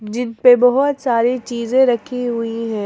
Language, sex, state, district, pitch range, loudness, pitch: Hindi, female, Jharkhand, Ranchi, 230-250 Hz, -16 LUFS, 245 Hz